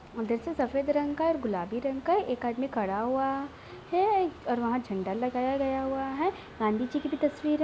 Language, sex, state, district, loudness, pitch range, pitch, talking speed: Hindi, female, Bihar, Gopalganj, -30 LUFS, 240-300 Hz, 270 Hz, 205 wpm